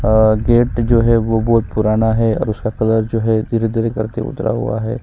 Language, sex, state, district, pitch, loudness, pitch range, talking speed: Hindi, female, Chhattisgarh, Sukma, 110 Hz, -16 LUFS, 110-115 Hz, 215 wpm